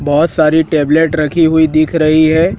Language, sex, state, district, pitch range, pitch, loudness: Hindi, male, Madhya Pradesh, Dhar, 155-160 Hz, 155 Hz, -11 LUFS